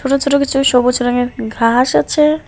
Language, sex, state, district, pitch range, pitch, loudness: Bengali, male, West Bengal, Alipurduar, 245-275 Hz, 250 Hz, -14 LUFS